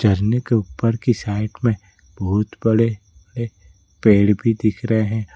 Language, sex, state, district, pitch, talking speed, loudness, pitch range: Hindi, male, Gujarat, Valsad, 105 Hz, 155 wpm, -20 LUFS, 95-115 Hz